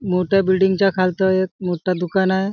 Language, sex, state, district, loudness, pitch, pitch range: Marathi, male, Maharashtra, Chandrapur, -18 LUFS, 190 Hz, 185-190 Hz